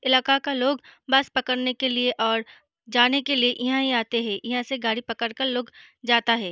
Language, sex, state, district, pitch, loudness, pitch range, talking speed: Hindi, female, Uttar Pradesh, Jalaun, 250 Hz, -23 LUFS, 235-265 Hz, 210 wpm